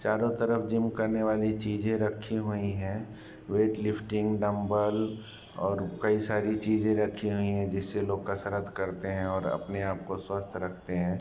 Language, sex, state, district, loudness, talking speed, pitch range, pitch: Hindi, male, Bihar, Sitamarhi, -30 LUFS, 160 wpm, 100-110 Hz, 105 Hz